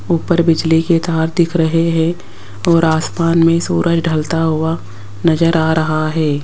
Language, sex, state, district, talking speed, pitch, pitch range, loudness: Hindi, female, Rajasthan, Jaipur, 160 wpm, 165 Hz, 160-165 Hz, -15 LUFS